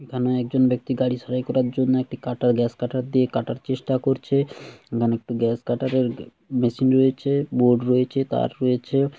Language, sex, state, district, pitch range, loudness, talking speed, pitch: Bengali, male, West Bengal, Jhargram, 125-130 Hz, -22 LUFS, 165 wpm, 130 Hz